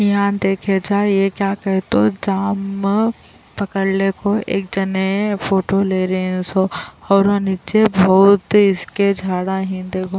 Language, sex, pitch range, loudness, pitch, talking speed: Urdu, female, 190-200 Hz, -17 LUFS, 195 Hz, 145 wpm